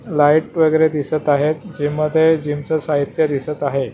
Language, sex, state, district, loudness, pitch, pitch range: Marathi, male, Maharashtra, Mumbai Suburban, -17 LUFS, 150 Hz, 145-160 Hz